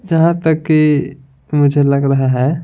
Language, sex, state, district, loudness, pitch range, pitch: Hindi, male, Bihar, Patna, -14 LUFS, 135-160 Hz, 145 Hz